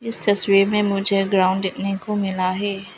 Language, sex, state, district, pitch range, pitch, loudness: Hindi, female, Arunachal Pradesh, Lower Dibang Valley, 190-205 Hz, 195 Hz, -19 LUFS